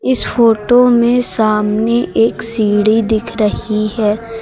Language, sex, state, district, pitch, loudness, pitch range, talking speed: Hindi, female, Uttar Pradesh, Lucknow, 225 Hz, -13 LUFS, 215-235 Hz, 120 wpm